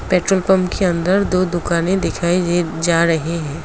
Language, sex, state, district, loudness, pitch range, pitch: Hindi, female, Assam, Kamrup Metropolitan, -17 LUFS, 170-185 Hz, 175 Hz